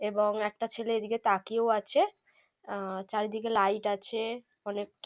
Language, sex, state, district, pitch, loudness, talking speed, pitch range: Bengali, female, West Bengal, North 24 Parganas, 215 Hz, -31 LUFS, 140 wpm, 205-230 Hz